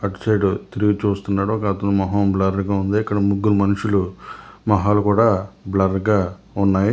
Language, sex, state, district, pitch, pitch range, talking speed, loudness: Telugu, male, Telangana, Hyderabad, 100 Hz, 95-105 Hz, 155 wpm, -19 LUFS